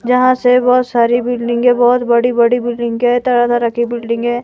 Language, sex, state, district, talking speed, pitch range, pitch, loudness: Hindi, female, Himachal Pradesh, Shimla, 215 wpm, 235-245 Hz, 240 Hz, -13 LUFS